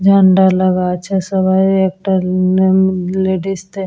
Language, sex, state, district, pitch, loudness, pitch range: Bengali, female, West Bengal, Dakshin Dinajpur, 190 Hz, -14 LUFS, 185-190 Hz